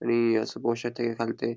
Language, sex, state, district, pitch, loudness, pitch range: Konkani, male, Goa, North and South Goa, 115 Hz, -28 LUFS, 115-120 Hz